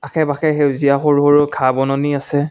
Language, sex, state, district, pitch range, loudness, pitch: Assamese, male, Assam, Kamrup Metropolitan, 140-145 Hz, -15 LUFS, 145 Hz